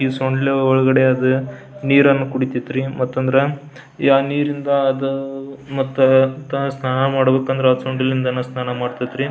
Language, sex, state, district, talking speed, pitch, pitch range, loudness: Kannada, male, Karnataka, Belgaum, 115 wpm, 135 Hz, 130-135 Hz, -18 LUFS